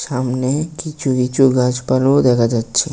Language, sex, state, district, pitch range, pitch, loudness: Bengali, male, Tripura, West Tripura, 125-140 Hz, 130 Hz, -16 LUFS